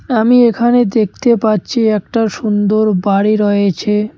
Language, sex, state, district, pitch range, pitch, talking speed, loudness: Bengali, male, West Bengal, Cooch Behar, 205-230 Hz, 215 Hz, 115 wpm, -13 LUFS